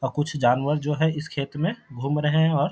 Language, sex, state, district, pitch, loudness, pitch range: Hindi, male, Bihar, Jamui, 150 Hz, -24 LUFS, 140-155 Hz